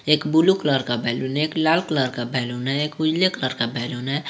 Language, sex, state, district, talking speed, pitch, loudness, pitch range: Hindi, male, Jharkhand, Garhwa, 250 wpm, 140 Hz, -21 LUFS, 125-155 Hz